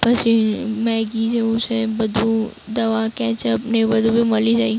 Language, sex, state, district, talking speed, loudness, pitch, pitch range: Gujarati, female, Maharashtra, Mumbai Suburban, 165 wpm, -19 LUFS, 225 Hz, 220-230 Hz